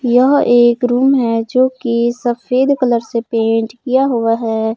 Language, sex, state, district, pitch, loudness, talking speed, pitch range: Hindi, female, Jharkhand, Palamu, 240 Hz, -14 LUFS, 150 wpm, 230-255 Hz